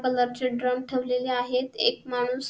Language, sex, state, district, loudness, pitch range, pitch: Marathi, female, Maharashtra, Sindhudurg, -27 LUFS, 250-255 Hz, 250 Hz